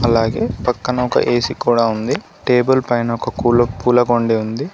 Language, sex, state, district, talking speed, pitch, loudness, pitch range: Telugu, male, Telangana, Komaram Bheem, 150 wpm, 120 Hz, -17 LUFS, 115-125 Hz